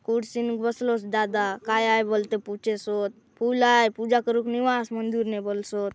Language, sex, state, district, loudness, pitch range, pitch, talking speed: Halbi, female, Chhattisgarh, Bastar, -25 LUFS, 210-235 Hz, 225 Hz, 190 wpm